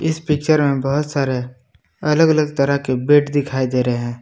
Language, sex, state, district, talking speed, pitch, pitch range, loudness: Hindi, male, Jharkhand, Palamu, 200 wpm, 140 Hz, 125-150 Hz, -18 LUFS